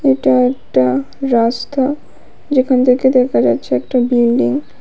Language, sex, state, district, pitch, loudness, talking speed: Bengali, female, Tripura, West Tripura, 250 Hz, -14 LUFS, 125 wpm